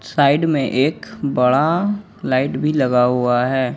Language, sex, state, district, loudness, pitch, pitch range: Hindi, male, Jharkhand, Ranchi, -18 LUFS, 135 Hz, 125-155 Hz